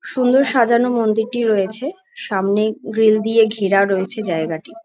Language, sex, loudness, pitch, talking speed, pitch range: Bengali, female, -17 LUFS, 220 Hz, 125 wpm, 200-240 Hz